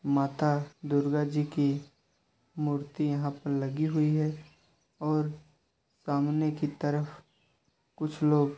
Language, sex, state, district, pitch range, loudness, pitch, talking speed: Hindi, male, Uttar Pradesh, Budaun, 145-150 Hz, -30 LUFS, 150 Hz, 110 wpm